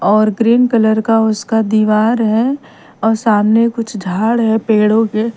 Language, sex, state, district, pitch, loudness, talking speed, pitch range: Hindi, female, Bihar, Patna, 220 Hz, -13 LUFS, 155 wpm, 215-230 Hz